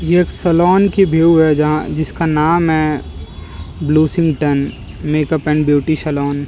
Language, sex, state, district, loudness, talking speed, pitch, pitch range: Hindi, male, Delhi, New Delhi, -14 LUFS, 140 wpm, 155 Hz, 145-165 Hz